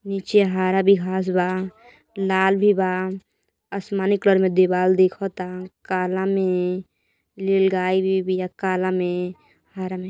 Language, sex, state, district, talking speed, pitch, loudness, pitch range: Bhojpuri, female, Uttar Pradesh, Gorakhpur, 140 wpm, 185 Hz, -21 LUFS, 185-195 Hz